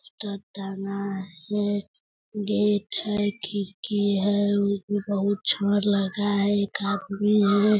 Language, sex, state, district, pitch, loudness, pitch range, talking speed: Hindi, male, Bihar, Sitamarhi, 205 Hz, -25 LUFS, 200-205 Hz, 75 wpm